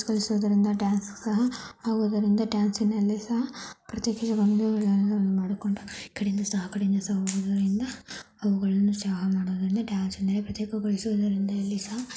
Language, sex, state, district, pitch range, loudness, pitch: Kannada, female, Karnataka, Belgaum, 200-215 Hz, -27 LUFS, 205 Hz